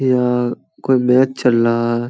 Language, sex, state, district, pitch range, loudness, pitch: Hindi, male, Bihar, Samastipur, 120-130 Hz, -16 LUFS, 125 Hz